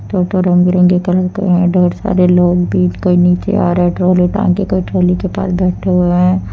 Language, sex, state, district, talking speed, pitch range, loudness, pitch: Hindi, female, Jharkhand, Deoghar, 230 wpm, 175-185 Hz, -12 LUFS, 180 Hz